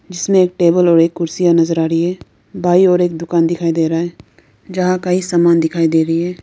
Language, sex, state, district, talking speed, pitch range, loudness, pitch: Hindi, female, Arunachal Pradesh, Lower Dibang Valley, 235 wpm, 165-180 Hz, -14 LUFS, 170 Hz